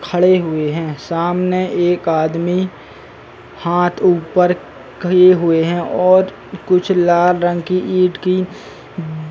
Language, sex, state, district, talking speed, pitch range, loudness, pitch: Hindi, male, Uttar Pradesh, Muzaffarnagar, 120 wpm, 165-185 Hz, -15 LUFS, 175 Hz